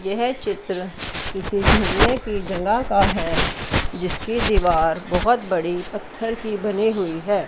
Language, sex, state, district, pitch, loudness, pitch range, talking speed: Hindi, female, Chandigarh, Chandigarh, 205 Hz, -21 LUFS, 185-225 Hz, 130 wpm